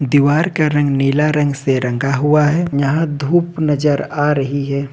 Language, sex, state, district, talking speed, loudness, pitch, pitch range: Hindi, male, Jharkhand, Ranchi, 185 wpm, -16 LUFS, 145 Hz, 140-150 Hz